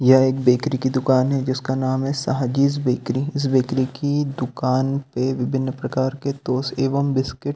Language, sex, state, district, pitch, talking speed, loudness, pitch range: Hindi, male, Delhi, New Delhi, 130 Hz, 180 wpm, -21 LUFS, 130-140 Hz